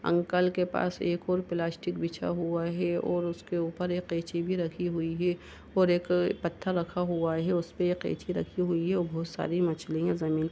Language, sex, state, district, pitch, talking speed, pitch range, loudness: Hindi, female, Uttar Pradesh, Budaun, 175 Hz, 210 wpm, 170-180 Hz, -30 LUFS